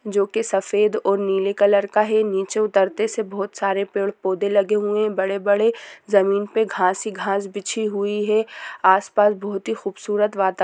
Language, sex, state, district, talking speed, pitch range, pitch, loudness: Hindi, female, Chhattisgarh, Sukma, 175 wpm, 195-210 Hz, 205 Hz, -21 LUFS